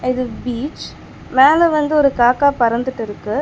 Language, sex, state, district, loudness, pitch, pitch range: Tamil, female, Tamil Nadu, Chennai, -16 LUFS, 255 Hz, 240-295 Hz